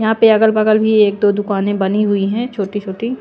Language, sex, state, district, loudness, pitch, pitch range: Hindi, female, Punjab, Pathankot, -15 LUFS, 210 Hz, 200-220 Hz